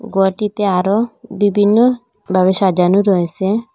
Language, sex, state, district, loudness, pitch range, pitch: Bengali, female, Assam, Hailakandi, -15 LUFS, 190-220 Hz, 205 Hz